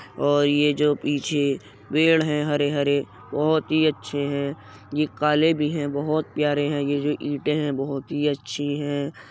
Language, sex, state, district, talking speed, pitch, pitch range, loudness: Hindi, male, Uttar Pradesh, Jyotiba Phule Nagar, 165 wpm, 145 Hz, 140-150 Hz, -23 LUFS